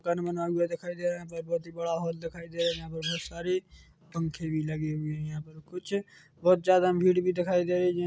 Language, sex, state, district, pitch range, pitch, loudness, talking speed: Hindi, male, Chhattisgarh, Korba, 165-180 Hz, 170 Hz, -30 LUFS, 260 wpm